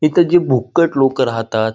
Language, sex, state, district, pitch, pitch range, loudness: Marathi, male, Maharashtra, Nagpur, 135 Hz, 115-170 Hz, -15 LUFS